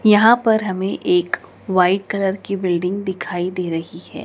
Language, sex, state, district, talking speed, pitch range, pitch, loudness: Hindi, female, Madhya Pradesh, Dhar, 170 wpm, 180-215 Hz, 195 Hz, -19 LUFS